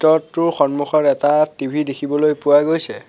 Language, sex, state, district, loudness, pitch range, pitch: Assamese, male, Assam, Sonitpur, -17 LUFS, 145-155 Hz, 150 Hz